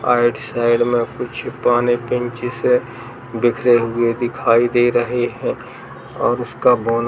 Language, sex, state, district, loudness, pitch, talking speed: Hindi, male, Chhattisgarh, Kabirdham, -18 LUFS, 120 Hz, 135 wpm